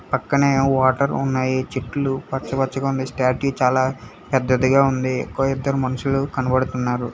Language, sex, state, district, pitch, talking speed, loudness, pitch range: Telugu, male, Telangana, Hyderabad, 130 Hz, 120 wpm, -20 LUFS, 130-135 Hz